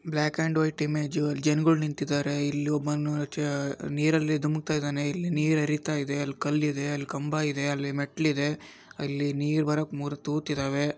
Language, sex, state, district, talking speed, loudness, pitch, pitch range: Kannada, male, Karnataka, Raichur, 150 wpm, -28 LUFS, 150 Hz, 145-155 Hz